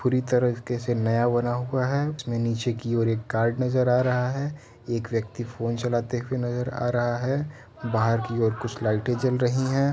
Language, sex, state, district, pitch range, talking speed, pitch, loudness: Hindi, male, Uttar Pradesh, Varanasi, 115-125 Hz, 210 wpm, 120 Hz, -26 LUFS